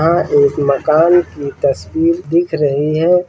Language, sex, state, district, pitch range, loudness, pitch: Hindi, male, Bihar, Darbhanga, 140-170 Hz, -14 LUFS, 155 Hz